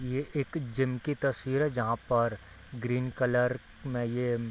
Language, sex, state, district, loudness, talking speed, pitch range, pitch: Hindi, male, Bihar, Gopalganj, -31 LUFS, 175 wpm, 120-135 Hz, 125 Hz